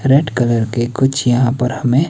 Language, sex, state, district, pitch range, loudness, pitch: Hindi, male, Himachal Pradesh, Shimla, 120-135 Hz, -15 LUFS, 125 Hz